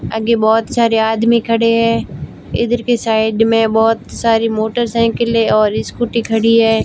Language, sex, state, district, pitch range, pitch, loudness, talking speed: Hindi, female, Rajasthan, Barmer, 225-230 Hz, 225 Hz, -14 LUFS, 150 wpm